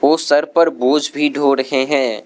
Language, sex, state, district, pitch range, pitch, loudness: Hindi, male, Arunachal Pradesh, Lower Dibang Valley, 135-150 Hz, 145 Hz, -15 LUFS